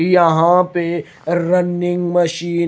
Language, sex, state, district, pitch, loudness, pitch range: Hindi, male, Himachal Pradesh, Shimla, 175 Hz, -16 LUFS, 170-175 Hz